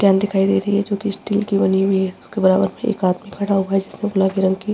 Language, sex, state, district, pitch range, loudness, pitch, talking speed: Hindi, female, Chhattisgarh, Bastar, 190-205 Hz, -18 LUFS, 195 Hz, 315 wpm